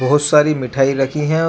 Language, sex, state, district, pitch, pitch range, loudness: Hindi, male, Jharkhand, Garhwa, 145 Hz, 135-150 Hz, -15 LUFS